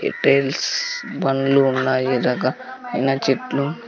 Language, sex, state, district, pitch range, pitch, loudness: Telugu, male, Andhra Pradesh, Sri Satya Sai, 130-140 Hz, 135 Hz, -20 LUFS